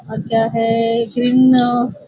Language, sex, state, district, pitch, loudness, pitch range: Hindi, female, Bihar, Muzaffarpur, 230 Hz, -15 LUFS, 225-245 Hz